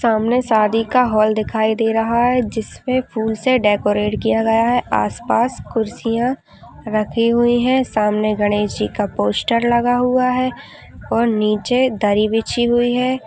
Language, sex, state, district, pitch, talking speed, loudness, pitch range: Hindi, female, Chhattisgarh, Rajnandgaon, 230 Hz, 160 wpm, -17 LUFS, 215-245 Hz